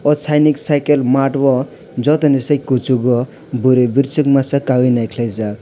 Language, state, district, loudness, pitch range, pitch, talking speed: Kokborok, Tripura, West Tripura, -15 LUFS, 125-145 Hz, 135 Hz, 170 wpm